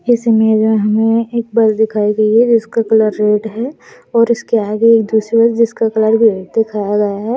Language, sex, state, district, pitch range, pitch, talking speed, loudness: Hindi, female, Goa, North and South Goa, 215-230 Hz, 220 Hz, 205 wpm, -13 LUFS